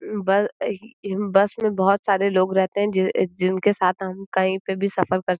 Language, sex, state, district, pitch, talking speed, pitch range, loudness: Hindi, female, Uttar Pradesh, Gorakhpur, 195 Hz, 180 wpm, 185-200 Hz, -22 LUFS